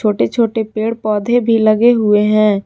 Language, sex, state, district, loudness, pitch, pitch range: Hindi, female, Jharkhand, Garhwa, -14 LUFS, 220 Hz, 210-230 Hz